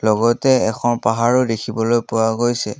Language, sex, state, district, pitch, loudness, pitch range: Assamese, male, Assam, Kamrup Metropolitan, 115 Hz, -17 LUFS, 110-120 Hz